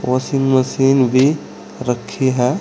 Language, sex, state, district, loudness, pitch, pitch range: Hindi, male, Uttar Pradesh, Saharanpur, -16 LUFS, 130 Hz, 125-135 Hz